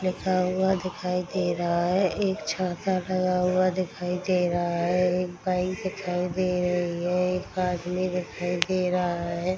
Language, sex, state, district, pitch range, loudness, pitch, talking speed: Hindi, female, Bihar, Darbhanga, 180-185 Hz, -26 LUFS, 180 Hz, 165 wpm